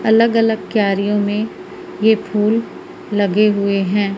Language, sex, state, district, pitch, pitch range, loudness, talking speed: Hindi, female, Madhya Pradesh, Umaria, 210 Hz, 200-220 Hz, -16 LUFS, 130 wpm